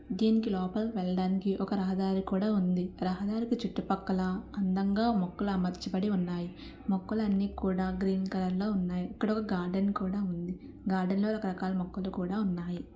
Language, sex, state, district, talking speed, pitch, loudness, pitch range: Telugu, female, Andhra Pradesh, Visakhapatnam, 145 wpm, 190 Hz, -32 LUFS, 185-205 Hz